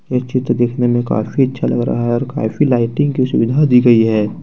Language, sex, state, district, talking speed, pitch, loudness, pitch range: Hindi, male, Jharkhand, Deoghar, 230 wpm, 125 Hz, -15 LUFS, 120-135 Hz